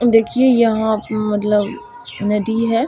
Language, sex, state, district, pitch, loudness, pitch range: Maithili, female, Bihar, Supaul, 225 Hz, -17 LUFS, 210-240 Hz